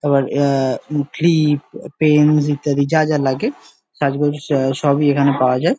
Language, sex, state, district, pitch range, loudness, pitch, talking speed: Bengali, male, West Bengal, Jalpaiguri, 140-150 Hz, -17 LUFS, 145 Hz, 155 wpm